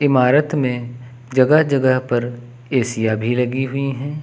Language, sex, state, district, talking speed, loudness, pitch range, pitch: Hindi, male, Uttar Pradesh, Lucknow, 140 wpm, -18 LUFS, 120-135 Hz, 130 Hz